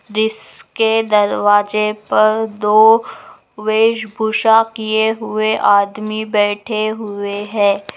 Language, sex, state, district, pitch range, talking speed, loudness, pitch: Magahi, female, Bihar, Gaya, 210-220 Hz, 100 wpm, -15 LUFS, 215 Hz